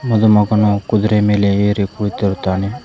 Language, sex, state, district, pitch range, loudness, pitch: Kannada, male, Karnataka, Koppal, 100-105 Hz, -15 LUFS, 105 Hz